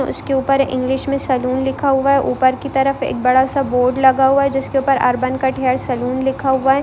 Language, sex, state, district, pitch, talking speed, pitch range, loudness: Hindi, female, Goa, North and South Goa, 265 Hz, 235 wpm, 255-275 Hz, -16 LUFS